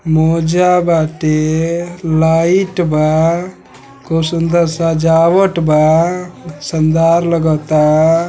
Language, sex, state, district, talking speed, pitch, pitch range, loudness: Bhojpuri, male, Uttar Pradesh, Deoria, 70 wpm, 165 Hz, 155-170 Hz, -13 LUFS